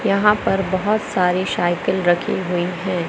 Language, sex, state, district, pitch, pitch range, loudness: Hindi, male, Madhya Pradesh, Katni, 185 Hz, 175-200 Hz, -19 LUFS